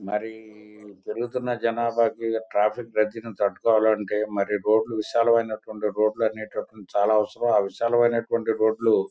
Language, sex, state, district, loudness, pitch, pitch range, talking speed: Telugu, male, Andhra Pradesh, Guntur, -24 LUFS, 110 Hz, 105-115 Hz, 125 wpm